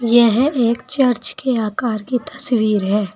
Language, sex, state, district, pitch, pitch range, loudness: Hindi, female, Uttar Pradesh, Saharanpur, 240 Hz, 215-255 Hz, -17 LUFS